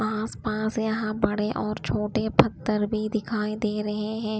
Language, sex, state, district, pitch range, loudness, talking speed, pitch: Hindi, female, Bihar, Kaimur, 210-220 Hz, -26 LUFS, 165 wpm, 215 Hz